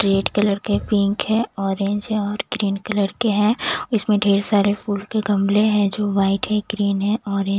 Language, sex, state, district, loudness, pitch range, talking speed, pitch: Hindi, female, Maharashtra, Mumbai Suburban, -20 LUFS, 200-215 Hz, 205 wpm, 205 Hz